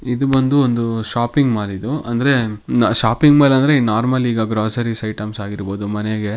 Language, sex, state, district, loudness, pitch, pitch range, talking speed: Kannada, male, Karnataka, Mysore, -16 LUFS, 115 Hz, 110-130 Hz, 150 wpm